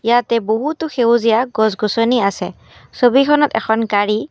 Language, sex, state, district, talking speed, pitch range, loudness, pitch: Assamese, female, Assam, Kamrup Metropolitan, 125 wpm, 220-245 Hz, -15 LUFS, 230 Hz